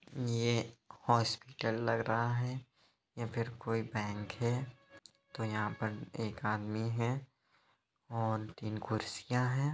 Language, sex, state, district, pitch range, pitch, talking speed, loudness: Hindi, male, Bihar, East Champaran, 110-125 Hz, 115 Hz, 125 wpm, -36 LUFS